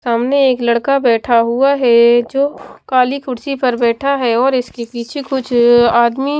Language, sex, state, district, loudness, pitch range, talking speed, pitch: Hindi, female, Haryana, Jhajjar, -14 LUFS, 235-275 Hz, 170 wpm, 250 Hz